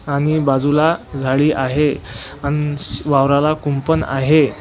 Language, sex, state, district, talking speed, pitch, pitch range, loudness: Marathi, male, Maharashtra, Washim, 105 wpm, 145 Hz, 135-150 Hz, -17 LUFS